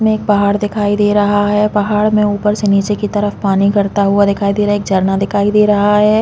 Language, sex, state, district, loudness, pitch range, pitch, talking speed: Hindi, female, Chhattisgarh, Balrampur, -13 LUFS, 200-210 Hz, 205 Hz, 260 wpm